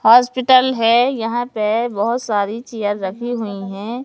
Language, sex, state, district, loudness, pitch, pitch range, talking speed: Hindi, male, Madhya Pradesh, Katni, -17 LUFS, 230 Hz, 205-245 Hz, 150 wpm